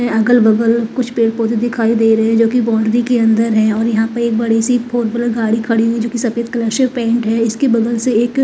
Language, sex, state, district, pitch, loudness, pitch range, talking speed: Hindi, female, Bihar, West Champaran, 230 Hz, -14 LUFS, 225-240 Hz, 255 wpm